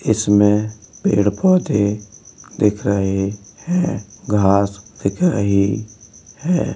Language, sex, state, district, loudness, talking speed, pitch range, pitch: Hindi, male, Uttar Pradesh, Jalaun, -18 LUFS, 80 wpm, 100-110 Hz, 105 Hz